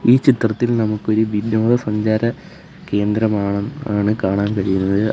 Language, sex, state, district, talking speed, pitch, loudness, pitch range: Malayalam, male, Kerala, Kollam, 115 wpm, 110 Hz, -18 LUFS, 105-120 Hz